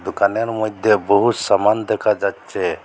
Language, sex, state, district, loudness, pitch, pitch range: Bengali, male, Assam, Hailakandi, -18 LUFS, 105 Hz, 100-110 Hz